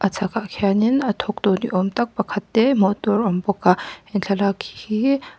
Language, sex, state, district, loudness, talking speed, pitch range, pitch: Mizo, female, Mizoram, Aizawl, -20 LUFS, 190 wpm, 195-225 Hz, 205 Hz